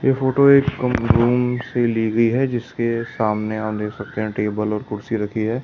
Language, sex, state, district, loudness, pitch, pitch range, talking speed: Hindi, male, Delhi, New Delhi, -20 LUFS, 115 Hz, 110-125 Hz, 215 wpm